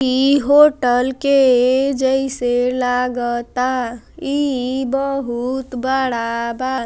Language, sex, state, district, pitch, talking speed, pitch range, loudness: Bhojpuri, female, Uttar Pradesh, Gorakhpur, 255 Hz, 80 wpm, 245-270 Hz, -17 LUFS